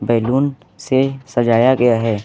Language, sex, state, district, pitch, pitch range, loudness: Hindi, male, Uttar Pradesh, Lucknow, 125 Hz, 115-135 Hz, -16 LUFS